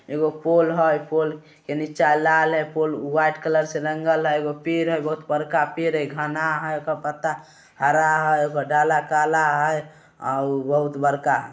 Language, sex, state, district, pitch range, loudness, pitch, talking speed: Hindi, male, Bihar, Samastipur, 150-155 Hz, -22 LUFS, 155 Hz, 170 wpm